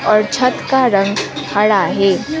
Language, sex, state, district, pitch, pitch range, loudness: Hindi, female, Sikkim, Gangtok, 210 Hz, 200-255 Hz, -15 LUFS